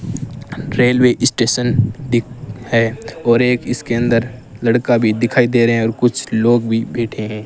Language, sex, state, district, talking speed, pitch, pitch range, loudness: Hindi, male, Rajasthan, Bikaner, 145 wpm, 120 Hz, 115-125 Hz, -16 LUFS